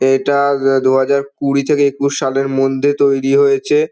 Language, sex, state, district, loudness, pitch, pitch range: Bengali, male, West Bengal, Dakshin Dinajpur, -14 LUFS, 140 Hz, 135-140 Hz